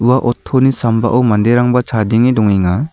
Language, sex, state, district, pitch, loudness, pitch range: Garo, male, Meghalaya, South Garo Hills, 120 Hz, -13 LUFS, 110-125 Hz